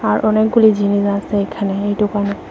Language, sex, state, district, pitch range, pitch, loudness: Bengali, female, Tripura, West Tripura, 200-215 Hz, 205 Hz, -16 LUFS